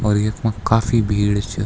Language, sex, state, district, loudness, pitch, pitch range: Garhwali, male, Uttarakhand, Tehri Garhwal, -19 LUFS, 105 Hz, 105-115 Hz